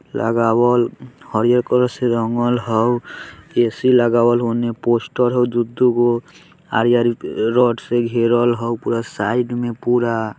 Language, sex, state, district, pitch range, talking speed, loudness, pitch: Hindi, male, Bihar, Vaishali, 115-120 Hz, 145 wpm, -18 LUFS, 120 Hz